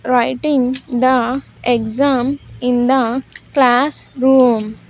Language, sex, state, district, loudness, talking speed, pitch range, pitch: English, female, Andhra Pradesh, Sri Satya Sai, -16 LUFS, 75 wpm, 245-265 Hz, 255 Hz